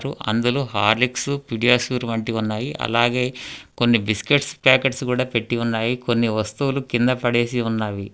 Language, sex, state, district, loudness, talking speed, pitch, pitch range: Telugu, male, Telangana, Hyderabad, -20 LUFS, 120 wpm, 120 Hz, 115-130 Hz